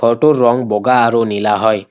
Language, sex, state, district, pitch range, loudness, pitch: Assamese, male, Assam, Kamrup Metropolitan, 105-125 Hz, -13 LUFS, 115 Hz